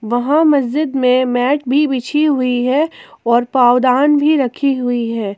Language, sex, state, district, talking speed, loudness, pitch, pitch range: Hindi, female, Jharkhand, Ranchi, 155 wpm, -14 LUFS, 255 Hz, 245-290 Hz